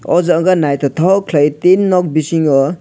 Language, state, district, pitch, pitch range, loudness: Kokborok, Tripura, West Tripura, 170 Hz, 150-180 Hz, -13 LUFS